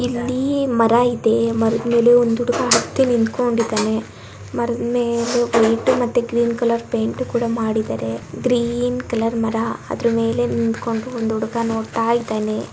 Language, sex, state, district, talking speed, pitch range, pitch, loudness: Kannada, female, Karnataka, Dakshina Kannada, 130 wpm, 225-240 Hz, 235 Hz, -19 LUFS